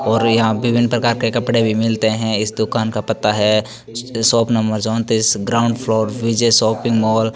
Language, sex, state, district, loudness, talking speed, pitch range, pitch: Hindi, male, Rajasthan, Bikaner, -16 LUFS, 195 wpm, 110-115 Hz, 110 Hz